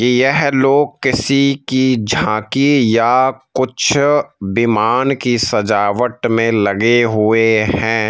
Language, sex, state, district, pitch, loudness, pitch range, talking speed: Hindi, male, Madhya Pradesh, Bhopal, 120 Hz, -14 LUFS, 110-135 Hz, 105 wpm